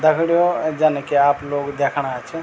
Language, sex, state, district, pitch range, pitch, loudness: Garhwali, male, Uttarakhand, Tehri Garhwal, 140-155 Hz, 145 Hz, -19 LUFS